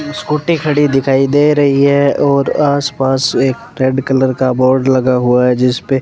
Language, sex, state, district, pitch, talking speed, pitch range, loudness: Hindi, male, Rajasthan, Bikaner, 135 Hz, 190 wpm, 130-145 Hz, -12 LUFS